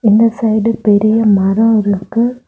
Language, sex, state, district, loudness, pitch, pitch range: Tamil, female, Tamil Nadu, Kanyakumari, -12 LUFS, 220 Hz, 205-230 Hz